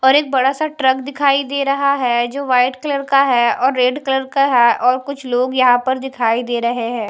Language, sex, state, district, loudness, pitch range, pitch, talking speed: Hindi, female, Haryana, Charkhi Dadri, -16 LUFS, 245-275 Hz, 260 Hz, 235 wpm